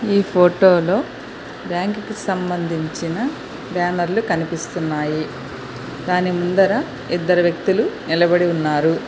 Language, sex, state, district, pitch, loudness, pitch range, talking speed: Telugu, female, Telangana, Hyderabad, 175 Hz, -19 LUFS, 165-190 Hz, 80 wpm